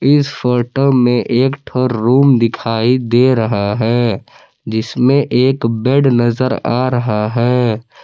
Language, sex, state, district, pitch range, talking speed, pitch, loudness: Hindi, male, Jharkhand, Palamu, 115-130 Hz, 125 wpm, 120 Hz, -14 LUFS